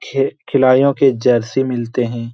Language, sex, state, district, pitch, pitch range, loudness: Hindi, male, Jharkhand, Jamtara, 130 Hz, 120-135 Hz, -15 LUFS